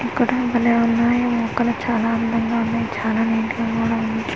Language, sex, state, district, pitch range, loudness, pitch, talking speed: Telugu, female, Andhra Pradesh, Manyam, 230-235 Hz, -20 LUFS, 230 Hz, 165 wpm